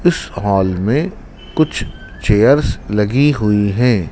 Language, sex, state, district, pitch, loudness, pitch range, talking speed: Hindi, male, Madhya Pradesh, Dhar, 105 Hz, -15 LUFS, 100-145 Hz, 115 wpm